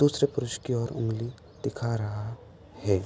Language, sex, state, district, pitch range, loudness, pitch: Hindi, male, Uttar Pradesh, Budaun, 105-125 Hz, -31 LUFS, 115 Hz